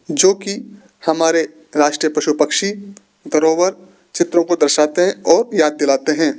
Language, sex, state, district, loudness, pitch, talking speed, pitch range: Hindi, male, Rajasthan, Jaipur, -16 LUFS, 165 Hz, 130 wpm, 150-190 Hz